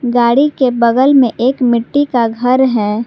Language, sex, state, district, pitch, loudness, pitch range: Hindi, female, Jharkhand, Garhwa, 245 Hz, -12 LUFS, 235-260 Hz